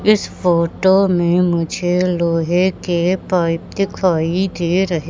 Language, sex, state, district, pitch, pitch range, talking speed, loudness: Hindi, female, Madhya Pradesh, Katni, 180 Hz, 170-190 Hz, 115 wpm, -17 LUFS